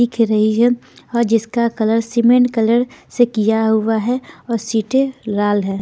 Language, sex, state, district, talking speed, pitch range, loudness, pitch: Hindi, female, Bihar, Patna, 165 wpm, 220-240 Hz, -17 LUFS, 230 Hz